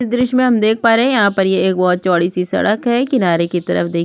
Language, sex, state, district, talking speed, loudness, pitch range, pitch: Hindi, female, Chhattisgarh, Sukma, 310 wpm, -15 LUFS, 180-240 Hz, 200 Hz